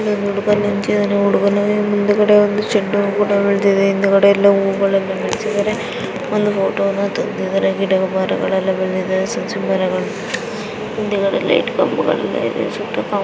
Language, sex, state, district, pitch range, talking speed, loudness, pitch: Kannada, female, Karnataka, Mysore, 195-210 Hz, 105 wpm, -17 LUFS, 200 Hz